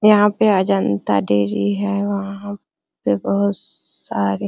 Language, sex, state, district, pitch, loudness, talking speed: Hindi, female, Bihar, Araria, 185 Hz, -19 LUFS, 135 wpm